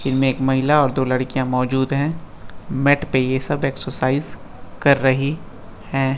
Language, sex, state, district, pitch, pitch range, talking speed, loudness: Hindi, male, Uttar Pradesh, Etah, 130 Hz, 130-140 Hz, 105 wpm, -19 LUFS